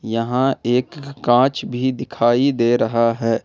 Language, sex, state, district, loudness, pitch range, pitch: Hindi, male, Jharkhand, Ranchi, -18 LUFS, 115-130 Hz, 120 Hz